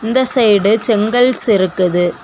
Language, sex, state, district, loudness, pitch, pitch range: Tamil, female, Tamil Nadu, Kanyakumari, -12 LUFS, 220 Hz, 195-245 Hz